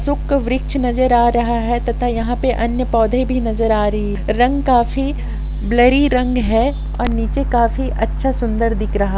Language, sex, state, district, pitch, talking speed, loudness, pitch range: Hindi, female, Chhattisgarh, Kabirdham, 240 Hz, 185 wpm, -17 LUFS, 225-255 Hz